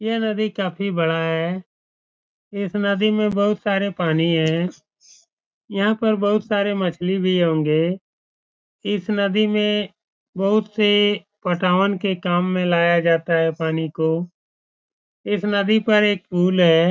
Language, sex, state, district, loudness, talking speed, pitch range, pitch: Hindi, male, Bihar, Saran, -20 LUFS, 140 wpm, 175-210 Hz, 195 Hz